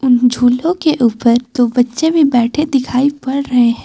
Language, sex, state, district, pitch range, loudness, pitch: Hindi, female, Jharkhand, Garhwa, 245-285 Hz, -13 LUFS, 250 Hz